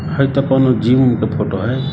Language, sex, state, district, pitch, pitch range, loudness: Hindi, male, Bihar, Gopalganj, 130 Hz, 115-140 Hz, -15 LUFS